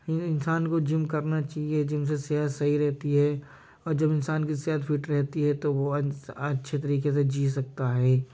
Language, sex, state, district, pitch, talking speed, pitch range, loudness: Hindi, male, Uttar Pradesh, Jyotiba Phule Nagar, 145 Hz, 210 wpm, 140-155 Hz, -27 LUFS